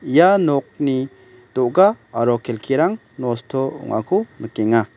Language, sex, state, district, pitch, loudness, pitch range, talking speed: Garo, male, Meghalaya, West Garo Hills, 130 Hz, -19 LUFS, 120-150 Hz, 95 wpm